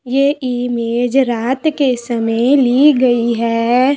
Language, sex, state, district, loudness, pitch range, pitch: Hindi, female, Bihar, Araria, -14 LUFS, 235-270 Hz, 245 Hz